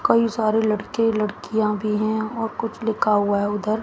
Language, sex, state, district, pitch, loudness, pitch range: Hindi, female, Haryana, Jhajjar, 215 Hz, -22 LUFS, 210-225 Hz